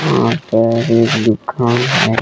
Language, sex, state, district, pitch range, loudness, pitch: Hindi, male, Jharkhand, Deoghar, 115-120 Hz, -14 LUFS, 115 Hz